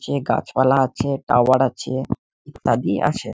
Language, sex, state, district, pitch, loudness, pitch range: Bengali, male, West Bengal, Malda, 135 Hz, -20 LUFS, 130-140 Hz